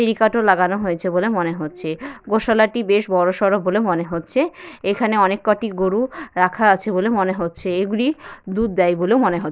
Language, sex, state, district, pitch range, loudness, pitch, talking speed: Bengali, female, West Bengal, Malda, 180-220 Hz, -19 LUFS, 195 Hz, 185 wpm